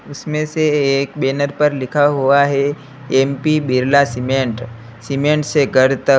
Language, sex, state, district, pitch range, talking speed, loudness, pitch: Hindi, male, Uttar Pradesh, Lalitpur, 135-145 Hz, 145 wpm, -16 LUFS, 140 Hz